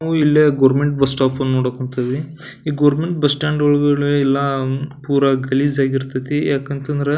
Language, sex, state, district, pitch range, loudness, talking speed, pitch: Kannada, male, Karnataka, Belgaum, 135-145 Hz, -17 LUFS, 160 wpm, 140 Hz